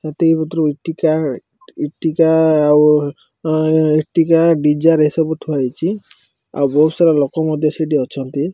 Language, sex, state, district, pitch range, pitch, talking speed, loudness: Odia, male, Odisha, Malkangiri, 150-165 Hz, 155 Hz, 125 wpm, -15 LUFS